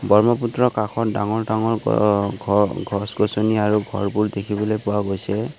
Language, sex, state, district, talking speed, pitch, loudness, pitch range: Assamese, male, Assam, Kamrup Metropolitan, 105 wpm, 105 Hz, -21 LUFS, 105-110 Hz